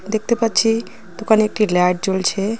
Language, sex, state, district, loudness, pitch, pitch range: Bengali, female, West Bengal, Cooch Behar, -18 LUFS, 215 Hz, 190-225 Hz